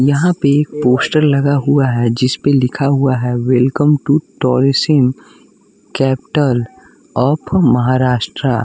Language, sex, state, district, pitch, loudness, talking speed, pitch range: Hindi, male, Bihar, West Champaran, 135 Hz, -14 LUFS, 120 wpm, 125-145 Hz